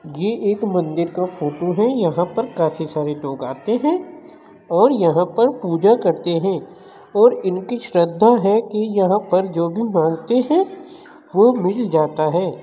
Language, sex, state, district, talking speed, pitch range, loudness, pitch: Hindi, male, Uttar Pradesh, Jyotiba Phule Nagar, 160 wpm, 170-235 Hz, -18 LUFS, 190 Hz